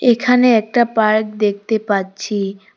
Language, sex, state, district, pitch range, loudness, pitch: Bengali, female, West Bengal, Cooch Behar, 200-230 Hz, -16 LUFS, 215 Hz